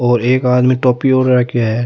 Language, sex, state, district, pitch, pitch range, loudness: Rajasthani, male, Rajasthan, Nagaur, 125 Hz, 120-130 Hz, -13 LUFS